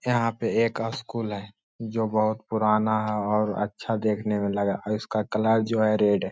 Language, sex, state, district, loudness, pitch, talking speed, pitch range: Hindi, male, Jharkhand, Sahebganj, -25 LUFS, 110 Hz, 210 wpm, 105-110 Hz